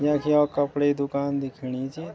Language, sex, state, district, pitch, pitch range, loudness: Garhwali, male, Uttarakhand, Tehri Garhwal, 145 Hz, 140-150 Hz, -25 LUFS